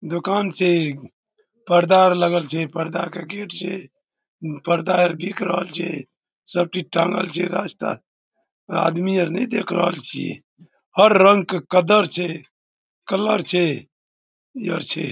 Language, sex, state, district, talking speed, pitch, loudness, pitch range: Maithili, male, Bihar, Darbhanga, 150 wpm, 175 Hz, -20 LUFS, 170-190 Hz